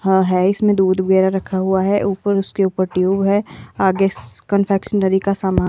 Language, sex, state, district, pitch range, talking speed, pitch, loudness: Hindi, female, Himachal Pradesh, Shimla, 190-200 Hz, 180 wpm, 195 Hz, -17 LUFS